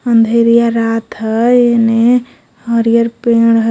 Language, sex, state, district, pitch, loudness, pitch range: Magahi, female, Jharkhand, Palamu, 230 Hz, -11 LUFS, 225-235 Hz